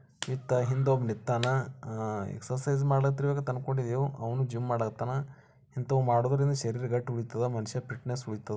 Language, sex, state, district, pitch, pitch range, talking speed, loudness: Kannada, male, Karnataka, Bijapur, 125 Hz, 120-135 Hz, 120 wpm, -31 LUFS